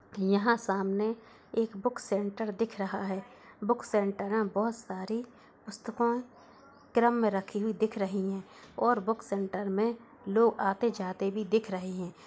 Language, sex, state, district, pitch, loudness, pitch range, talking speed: Hindi, female, Uttar Pradesh, Budaun, 215 Hz, -31 LUFS, 195-230 Hz, 150 wpm